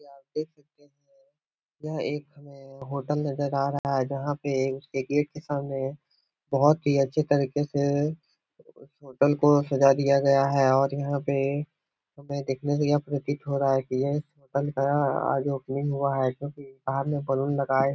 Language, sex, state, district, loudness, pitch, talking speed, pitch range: Hindi, male, Bihar, Supaul, -26 LUFS, 140 Hz, 205 wpm, 135-145 Hz